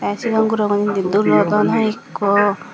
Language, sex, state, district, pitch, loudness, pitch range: Chakma, female, Tripura, Dhalai, 205 Hz, -17 LUFS, 200-220 Hz